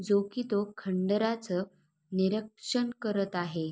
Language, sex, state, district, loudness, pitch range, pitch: Marathi, female, Maharashtra, Sindhudurg, -31 LUFS, 185-220 Hz, 200 Hz